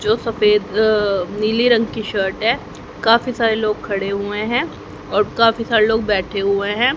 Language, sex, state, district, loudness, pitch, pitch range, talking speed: Hindi, female, Haryana, Jhajjar, -18 LUFS, 215 Hz, 205-230 Hz, 180 wpm